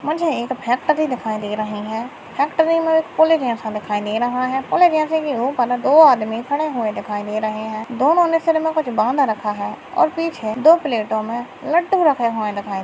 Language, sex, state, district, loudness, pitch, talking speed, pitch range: Hindi, female, Maharashtra, Aurangabad, -18 LUFS, 255 Hz, 180 wpm, 220-315 Hz